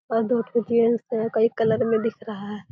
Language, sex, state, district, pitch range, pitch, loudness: Hindi, female, Uttar Pradesh, Deoria, 220-230 Hz, 225 Hz, -23 LUFS